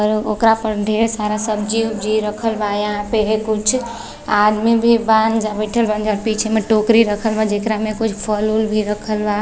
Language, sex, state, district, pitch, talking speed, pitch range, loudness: Bhojpuri, female, Uttar Pradesh, Deoria, 215 Hz, 190 wpm, 210-225 Hz, -17 LUFS